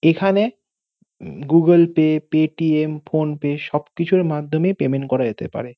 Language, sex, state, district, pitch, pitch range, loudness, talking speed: Bengali, male, West Bengal, North 24 Parganas, 155 Hz, 150-180 Hz, -19 LUFS, 145 wpm